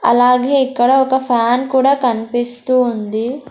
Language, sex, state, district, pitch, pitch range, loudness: Telugu, female, Andhra Pradesh, Sri Satya Sai, 250 Hz, 240-265 Hz, -15 LUFS